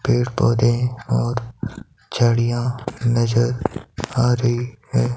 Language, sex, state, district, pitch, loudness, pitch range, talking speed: Hindi, male, Himachal Pradesh, Shimla, 120 Hz, -20 LUFS, 115-120 Hz, 95 wpm